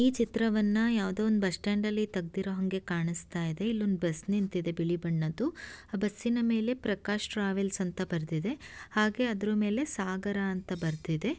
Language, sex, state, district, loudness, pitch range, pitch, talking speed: Kannada, female, Karnataka, Shimoga, -31 LUFS, 180-215 Hz, 200 Hz, 155 wpm